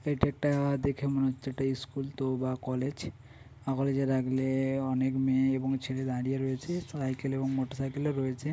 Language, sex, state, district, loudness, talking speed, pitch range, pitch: Bengali, male, West Bengal, Paschim Medinipur, -31 LUFS, 195 wpm, 130-135 Hz, 135 Hz